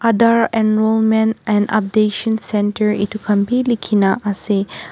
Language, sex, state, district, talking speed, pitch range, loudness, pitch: Nagamese, female, Nagaland, Kohima, 135 wpm, 205-225 Hz, -16 LUFS, 215 Hz